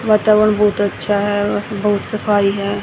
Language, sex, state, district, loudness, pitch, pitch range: Hindi, female, Haryana, Rohtak, -16 LUFS, 205 Hz, 205-210 Hz